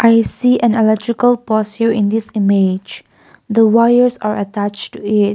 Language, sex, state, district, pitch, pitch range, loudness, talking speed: English, female, Nagaland, Kohima, 220 Hz, 205-230 Hz, -14 LUFS, 145 wpm